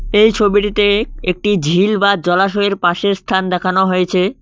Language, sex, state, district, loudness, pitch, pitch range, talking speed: Bengali, male, West Bengal, Cooch Behar, -14 LUFS, 200 Hz, 185-205 Hz, 135 wpm